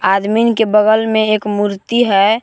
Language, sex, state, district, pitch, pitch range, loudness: Hindi, male, Jharkhand, Palamu, 215 Hz, 205-225 Hz, -13 LUFS